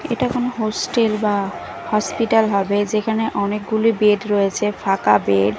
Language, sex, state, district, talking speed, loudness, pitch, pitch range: Bengali, female, Bihar, Katihar, 140 wpm, -19 LUFS, 210 Hz, 200-220 Hz